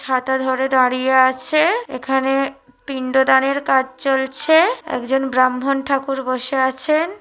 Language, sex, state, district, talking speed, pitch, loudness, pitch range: Bengali, female, West Bengal, North 24 Parganas, 135 wpm, 265 Hz, -18 LUFS, 260-275 Hz